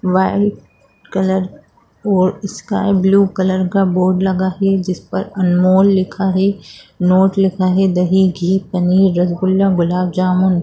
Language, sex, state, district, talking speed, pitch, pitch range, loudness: Hindi, female, Bihar, Jamui, 135 wpm, 190 Hz, 185-195 Hz, -15 LUFS